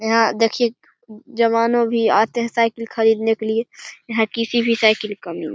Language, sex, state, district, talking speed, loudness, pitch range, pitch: Hindi, male, Bihar, Begusarai, 185 wpm, -19 LUFS, 220-230 Hz, 230 Hz